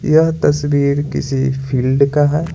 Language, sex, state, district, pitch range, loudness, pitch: Hindi, male, Bihar, Patna, 135-150 Hz, -15 LUFS, 145 Hz